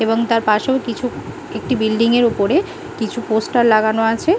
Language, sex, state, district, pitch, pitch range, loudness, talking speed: Bengali, female, West Bengal, Malda, 230 Hz, 220-250 Hz, -17 LUFS, 165 wpm